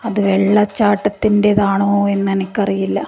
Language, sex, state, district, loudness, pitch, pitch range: Malayalam, female, Kerala, Kasaragod, -15 LUFS, 200 Hz, 195-210 Hz